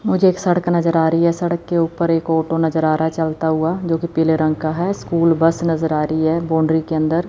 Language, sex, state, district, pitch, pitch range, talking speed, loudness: Hindi, female, Chandigarh, Chandigarh, 165 Hz, 160-170 Hz, 280 wpm, -18 LUFS